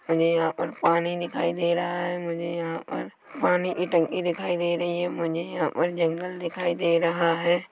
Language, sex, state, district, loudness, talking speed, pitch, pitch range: Hindi, male, Chhattisgarh, Korba, -26 LUFS, 200 wpm, 170 Hz, 170-175 Hz